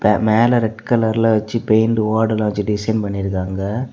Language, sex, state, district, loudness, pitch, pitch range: Tamil, male, Tamil Nadu, Kanyakumari, -17 LUFS, 110 Hz, 105-115 Hz